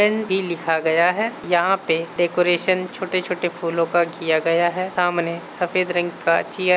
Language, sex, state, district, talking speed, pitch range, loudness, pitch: Hindi, male, Bihar, Saharsa, 170 wpm, 170-185 Hz, -21 LUFS, 175 Hz